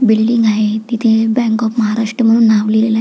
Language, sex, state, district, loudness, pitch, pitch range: Marathi, female, Maharashtra, Pune, -13 LUFS, 225 Hz, 220-230 Hz